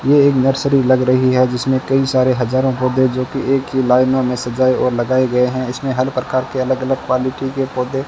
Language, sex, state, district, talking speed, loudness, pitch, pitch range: Hindi, male, Rajasthan, Bikaner, 240 wpm, -16 LUFS, 130 Hz, 130-135 Hz